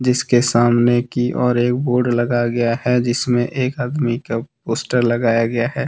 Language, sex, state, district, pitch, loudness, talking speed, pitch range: Hindi, male, Jharkhand, Deoghar, 120 Hz, -18 LUFS, 175 wpm, 120-125 Hz